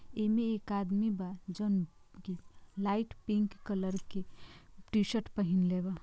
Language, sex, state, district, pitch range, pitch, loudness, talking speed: Bhojpuri, female, Bihar, Gopalganj, 185-210 Hz, 200 Hz, -35 LUFS, 120 wpm